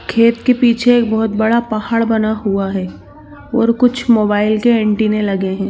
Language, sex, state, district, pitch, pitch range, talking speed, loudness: Hindi, female, Chhattisgarh, Bilaspur, 220 Hz, 210-235 Hz, 180 wpm, -14 LUFS